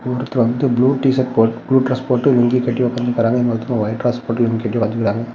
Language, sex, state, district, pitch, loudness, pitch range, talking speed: Tamil, male, Tamil Nadu, Namakkal, 120 Hz, -17 LUFS, 115-125 Hz, 200 wpm